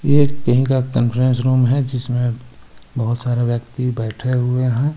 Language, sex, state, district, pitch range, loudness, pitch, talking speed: Hindi, male, Jharkhand, Ranchi, 120-130 Hz, -18 LUFS, 125 Hz, 155 wpm